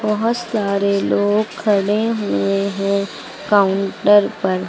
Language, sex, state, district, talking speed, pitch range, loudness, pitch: Hindi, female, Uttar Pradesh, Lucknow, 105 wpm, 195-210 Hz, -17 LUFS, 200 Hz